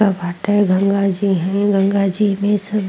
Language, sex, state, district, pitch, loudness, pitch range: Bhojpuri, female, Uttar Pradesh, Ghazipur, 200 Hz, -17 LUFS, 195-205 Hz